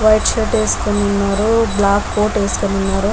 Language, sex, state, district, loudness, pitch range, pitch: Telugu, female, Telangana, Nalgonda, -16 LUFS, 200-215 Hz, 205 Hz